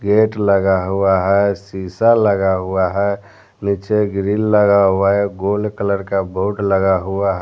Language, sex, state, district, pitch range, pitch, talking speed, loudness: Hindi, male, Bihar, Patna, 95-100 Hz, 100 Hz, 160 wpm, -16 LUFS